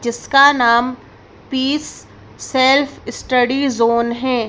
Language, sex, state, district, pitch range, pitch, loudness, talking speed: Hindi, female, Madhya Pradesh, Bhopal, 235-275 Hz, 255 Hz, -15 LUFS, 95 wpm